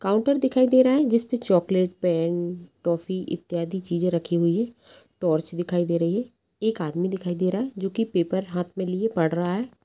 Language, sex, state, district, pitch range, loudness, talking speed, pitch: Hindi, female, Uttarakhand, Tehri Garhwal, 175-225 Hz, -24 LUFS, 205 wpm, 185 Hz